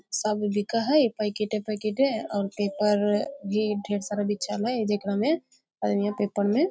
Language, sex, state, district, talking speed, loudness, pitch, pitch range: Maithili, female, Bihar, Muzaffarpur, 170 wpm, -26 LUFS, 210 Hz, 205-215 Hz